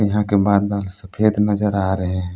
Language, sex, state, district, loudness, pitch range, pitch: Hindi, male, Jharkhand, Palamu, -19 LUFS, 95-105 Hz, 100 Hz